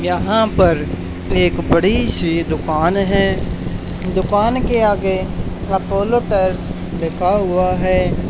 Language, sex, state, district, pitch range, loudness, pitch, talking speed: Hindi, male, Haryana, Charkhi Dadri, 160-195 Hz, -17 LUFS, 185 Hz, 110 wpm